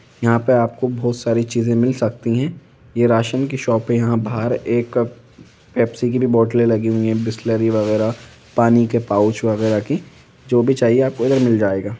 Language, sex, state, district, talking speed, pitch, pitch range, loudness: Hindi, male, Jharkhand, Jamtara, 190 wpm, 115 Hz, 115-125 Hz, -18 LUFS